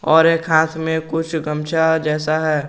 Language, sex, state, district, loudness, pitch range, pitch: Hindi, male, Jharkhand, Garhwa, -18 LUFS, 155-160 Hz, 160 Hz